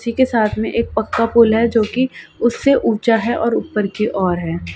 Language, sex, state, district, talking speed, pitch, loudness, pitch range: Hindi, female, Uttar Pradesh, Ghazipur, 225 wpm, 225 Hz, -17 LUFS, 215-235 Hz